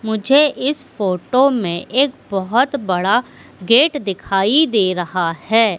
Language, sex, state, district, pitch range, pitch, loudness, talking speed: Hindi, female, Madhya Pradesh, Katni, 185-265 Hz, 220 Hz, -16 LUFS, 125 wpm